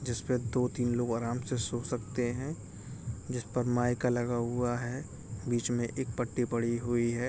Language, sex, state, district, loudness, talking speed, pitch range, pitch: Hindi, male, Uttar Pradesh, Jalaun, -33 LUFS, 190 wpm, 120-125 Hz, 120 Hz